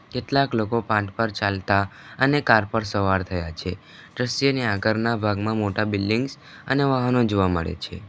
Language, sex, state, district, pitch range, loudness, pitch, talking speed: Gujarati, male, Gujarat, Valsad, 100-125 Hz, -23 LUFS, 110 Hz, 155 wpm